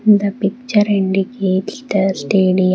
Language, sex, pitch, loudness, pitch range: English, female, 195 Hz, -16 LUFS, 190-205 Hz